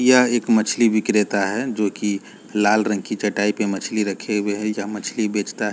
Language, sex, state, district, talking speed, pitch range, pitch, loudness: Hindi, male, Jharkhand, Jamtara, 200 wpm, 105-110 Hz, 105 Hz, -21 LUFS